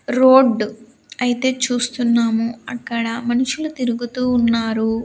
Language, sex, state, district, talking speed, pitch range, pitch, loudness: Telugu, female, Andhra Pradesh, Sri Satya Sai, 85 wpm, 230-255 Hz, 240 Hz, -18 LUFS